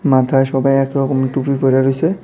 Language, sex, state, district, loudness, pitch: Bengali, male, Tripura, West Tripura, -15 LUFS, 135 Hz